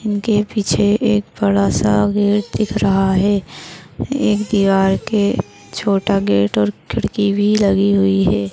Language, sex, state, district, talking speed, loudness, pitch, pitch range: Hindi, female, Maharashtra, Solapur, 135 wpm, -16 LUFS, 195 Hz, 155-205 Hz